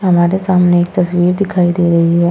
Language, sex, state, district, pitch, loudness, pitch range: Hindi, female, Goa, North and South Goa, 175 Hz, -12 LUFS, 175-180 Hz